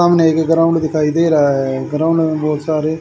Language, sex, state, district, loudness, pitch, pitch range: Hindi, male, Haryana, Rohtak, -15 LUFS, 155 Hz, 150-165 Hz